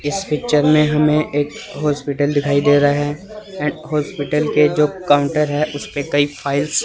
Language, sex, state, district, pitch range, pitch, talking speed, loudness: Hindi, male, Chandigarh, Chandigarh, 145-150 Hz, 150 Hz, 175 wpm, -17 LUFS